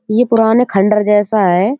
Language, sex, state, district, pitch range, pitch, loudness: Hindi, female, Uttar Pradesh, Budaun, 205-230 Hz, 215 Hz, -12 LUFS